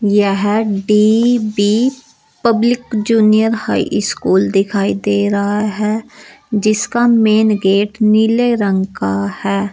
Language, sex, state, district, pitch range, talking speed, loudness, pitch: Hindi, female, Uttar Pradesh, Saharanpur, 205-225 Hz, 105 wpm, -14 LUFS, 215 Hz